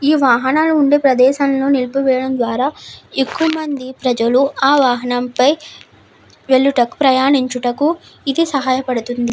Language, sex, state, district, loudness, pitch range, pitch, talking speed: Telugu, female, Andhra Pradesh, Anantapur, -15 LUFS, 250-280 Hz, 265 Hz, 95 wpm